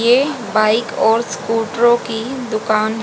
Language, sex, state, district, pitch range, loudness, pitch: Hindi, female, Haryana, Rohtak, 220-240 Hz, -17 LUFS, 230 Hz